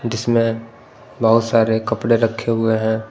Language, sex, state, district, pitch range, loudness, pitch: Hindi, male, Punjab, Pathankot, 110-115 Hz, -18 LUFS, 115 Hz